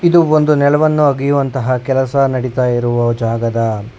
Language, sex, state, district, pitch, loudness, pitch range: Kannada, male, Karnataka, Bangalore, 130 Hz, -14 LUFS, 120-145 Hz